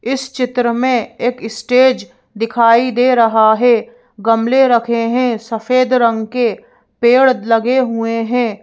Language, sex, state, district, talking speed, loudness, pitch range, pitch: Hindi, female, Madhya Pradesh, Bhopal, 130 wpm, -14 LUFS, 230-250 Hz, 240 Hz